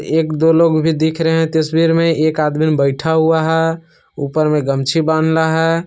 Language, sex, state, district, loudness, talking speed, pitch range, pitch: Hindi, male, Jharkhand, Palamu, -15 LUFS, 195 wpm, 155-165 Hz, 160 Hz